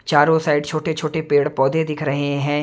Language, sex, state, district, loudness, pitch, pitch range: Hindi, male, Maharashtra, Mumbai Suburban, -19 LUFS, 150 Hz, 145-155 Hz